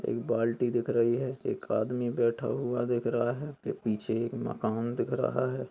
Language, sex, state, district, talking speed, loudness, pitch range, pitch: Hindi, male, Bihar, Purnia, 190 wpm, -31 LUFS, 115-125 Hz, 120 Hz